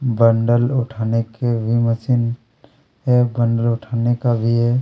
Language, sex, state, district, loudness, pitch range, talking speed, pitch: Hindi, male, Chhattisgarh, Kabirdham, -18 LUFS, 115-125 Hz, 150 wpm, 120 Hz